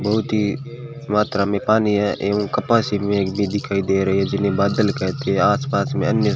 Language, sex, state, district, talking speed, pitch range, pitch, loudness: Hindi, male, Rajasthan, Bikaner, 205 wpm, 100-110 Hz, 105 Hz, -20 LUFS